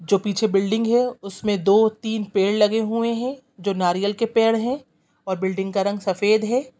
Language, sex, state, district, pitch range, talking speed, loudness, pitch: Hindi, female, Bihar, Sitamarhi, 195-230 Hz, 185 wpm, -21 LUFS, 210 Hz